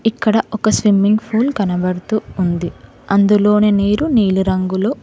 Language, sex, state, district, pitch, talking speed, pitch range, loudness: Telugu, female, Telangana, Mahabubabad, 205 Hz, 110 wpm, 190-220 Hz, -15 LUFS